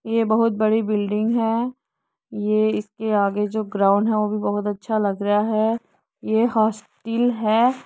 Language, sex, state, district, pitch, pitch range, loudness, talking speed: Hindi, female, Uttar Pradesh, Jyotiba Phule Nagar, 215 Hz, 210-225 Hz, -21 LUFS, 160 wpm